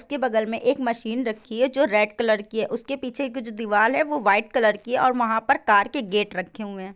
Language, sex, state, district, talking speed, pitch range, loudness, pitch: Hindi, female, Bihar, Gopalganj, 295 wpm, 210-260 Hz, -23 LUFS, 230 Hz